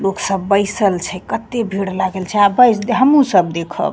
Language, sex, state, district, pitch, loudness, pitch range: Maithili, female, Bihar, Begusarai, 195 Hz, -15 LUFS, 190-225 Hz